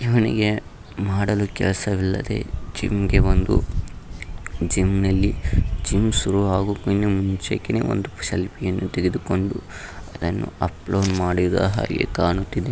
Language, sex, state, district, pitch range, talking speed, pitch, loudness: Kannada, male, Karnataka, Raichur, 90-100 Hz, 90 wpm, 95 Hz, -22 LUFS